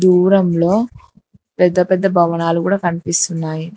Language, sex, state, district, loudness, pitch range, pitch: Telugu, female, Telangana, Hyderabad, -15 LUFS, 170-185 Hz, 175 Hz